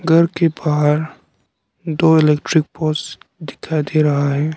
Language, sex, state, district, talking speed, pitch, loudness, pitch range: Hindi, male, Arunachal Pradesh, Lower Dibang Valley, 130 wpm, 155 Hz, -17 LUFS, 150-160 Hz